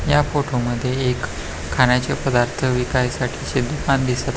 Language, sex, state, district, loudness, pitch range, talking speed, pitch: Marathi, male, Maharashtra, Pune, -20 LUFS, 120-135 Hz, 140 wpm, 125 Hz